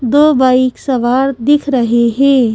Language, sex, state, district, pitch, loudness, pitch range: Hindi, female, Madhya Pradesh, Bhopal, 255 Hz, -12 LUFS, 240-275 Hz